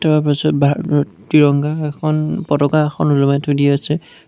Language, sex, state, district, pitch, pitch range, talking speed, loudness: Assamese, male, Assam, Sonitpur, 150 Hz, 145-155 Hz, 155 wpm, -16 LUFS